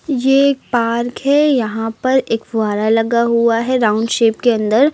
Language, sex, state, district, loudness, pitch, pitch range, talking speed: Hindi, female, Uttar Pradesh, Lucknow, -15 LUFS, 235 Hz, 225-260 Hz, 180 wpm